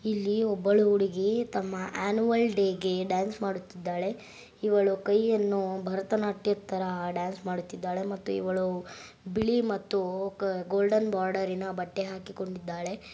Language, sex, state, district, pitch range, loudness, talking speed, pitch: Kannada, female, Karnataka, Gulbarga, 185-205 Hz, -29 LUFS, 100 wpm, 195 Hz